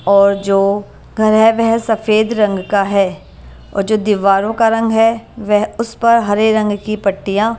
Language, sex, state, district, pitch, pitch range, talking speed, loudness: Hindi, female, Himachal Pradesh, Shimla, 215 Hz, 200-225 Hz, 175 wpm, -14 LUFS